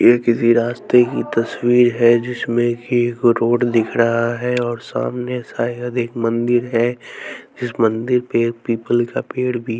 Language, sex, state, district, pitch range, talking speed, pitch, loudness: Hindi, male, Bihar, West Champaran, 115-120 Hz, 160 wpm, 120 Hz, -18 LUFS